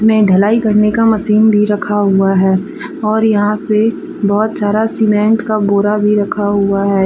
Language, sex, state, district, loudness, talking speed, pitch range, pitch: Hindi, female, Jharkhand, Deoghar, -13 LUFS, 180 wpm, 205-220 Hz, 210 Hz